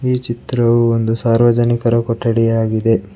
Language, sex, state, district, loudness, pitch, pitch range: Kannada, male, Karnataka, Bangalore, -15 LUFS, 115 Hz, 115-120 Hz